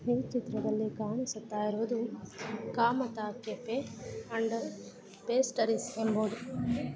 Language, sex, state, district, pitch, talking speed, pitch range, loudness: Kannada, female, Karnataka, Dharwad, 225 Hz, 75 wpm, 215-240 Hz, -34 LUFS